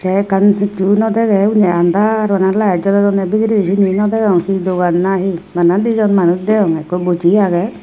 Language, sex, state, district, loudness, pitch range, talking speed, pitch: Chakma, female, Tripura, Unakoti, -13 LUFS, 180-210 Hz, 200 wpm, 195 Hz